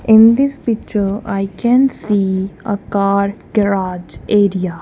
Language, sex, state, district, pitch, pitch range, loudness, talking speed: English, female, Punjab, Kapurthala, 200 Hz, 195-220 Hz, -15 LUFS, 125 wpm